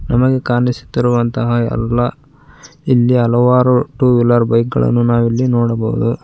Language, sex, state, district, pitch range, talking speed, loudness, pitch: Kannada, female, Karnataka, Koppal, 120-125 Hz, 115 wpm, -14 LUFS, 120 Hz